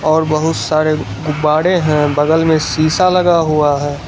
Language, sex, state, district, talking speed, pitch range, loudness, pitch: Hindi, male, Gujarat, Valsad, 160 wpm, 150-160 Hz, -14 LUFS, 155 Hz